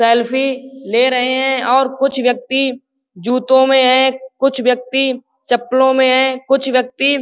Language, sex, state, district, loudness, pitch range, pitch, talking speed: Hindi, male, Uttar Pradesh, Budaun, -14 LUFS, 250-265 Hz, 260 Hz, 150 wpm